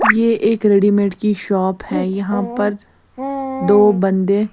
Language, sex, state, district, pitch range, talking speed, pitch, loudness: Hindi, female, Bihar, West Champaran, 200-215 Hz, 130 wpm, 205 Hz, -16 LUFS